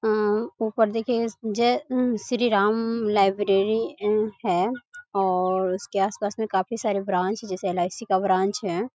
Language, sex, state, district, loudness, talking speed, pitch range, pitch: Hindi, female, Bihar, East Champaran, -24 LUFS, 155 wpm, 195-230 Hz, 210 Hz